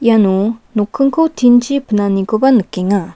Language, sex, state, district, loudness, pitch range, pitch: Garo, female, Meghalaya, West Garo Hills, -13 LUFS, 200-255 Hz, 225 Hz